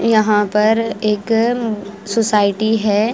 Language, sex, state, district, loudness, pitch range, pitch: Hindi, female, Himachal Pradesh, Shimla, -16 LUFS, 210-225 Hz, 215 Hz